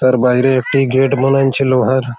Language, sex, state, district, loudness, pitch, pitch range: Bengali, male, West Bengal, Malda, -13 LUFS, 130 Hz, 125-135 Hz